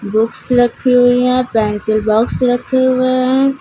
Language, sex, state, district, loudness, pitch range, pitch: Hindi, female, Uttar Pradesh, Lucknow, -14 LUFS, 220-255 Hz, 245 Hz